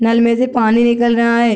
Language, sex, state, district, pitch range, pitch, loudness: Hindi, female, Bihar, Gopalganj, 230-235 Hz, 235 Hz, -13 LUFS